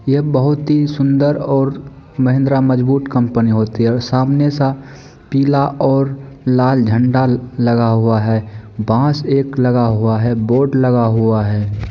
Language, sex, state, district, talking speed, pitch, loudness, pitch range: Maithili, male, Bihar, Supaul, 140 wpm, 130 Hz, -15 LUFS, 115-135 Hz